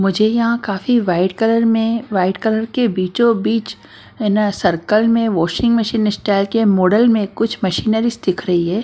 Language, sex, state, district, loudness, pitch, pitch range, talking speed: Hindi, female, Bihar, Patna, -16 LUFS, 220 Hz, 195-230 Hz, 165 wpm